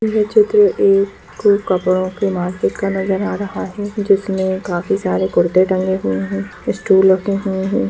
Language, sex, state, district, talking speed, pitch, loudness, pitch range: Hindi, female, Bihar, Gopalganj, 165 wpm, 190 Hz, -16 LUFS, 185-200 Hz